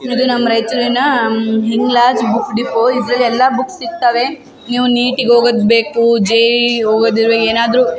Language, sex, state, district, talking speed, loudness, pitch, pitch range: Kannada, female, Karnataka, Raichur, 130 wpm, -13 LUFS, 240 Hz, 230-250 Hz